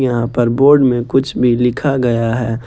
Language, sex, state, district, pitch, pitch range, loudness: Hindi, male, Jharkhand, Ranchi, 125 Hz, 120-135 Hz, -14 LUFS